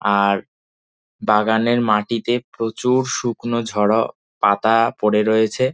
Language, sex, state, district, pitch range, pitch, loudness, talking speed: Bengali, male, West Bengal, Dakshin Dinajpur, 105-120 Hz, 110 Hz, -19 LUFS, 95 wpm